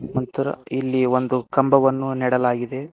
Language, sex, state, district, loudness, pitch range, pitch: Kannada, male, Karnataka, Koppal, -21 LUFS, 125-135 Hz, 130 Hz